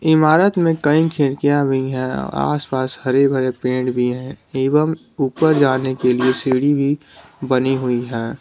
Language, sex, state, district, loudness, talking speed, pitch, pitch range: Hindi, male, Jharkhand, Garhwa, -18 LUFS, 165 wpm, 135 Hz, 130-150 Hz